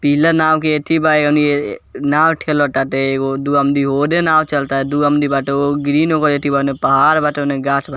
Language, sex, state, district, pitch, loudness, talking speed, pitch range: Bhojpuri, male, Bihar, East Champaran, 145 Hz, -15 LUFS, 225 wpm, 140-155 Hz